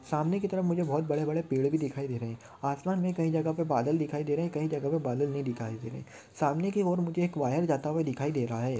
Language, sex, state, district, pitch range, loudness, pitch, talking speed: Hindi, male, Maharashtra, Solapur, 135-165 Hz, -31 LUFS, 150 Hz, 285 wpm